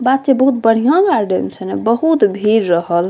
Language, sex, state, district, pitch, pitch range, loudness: Maithili, female, Bihar, Saharsa, 225 Hz, 190-270 Hz, -14 LUFS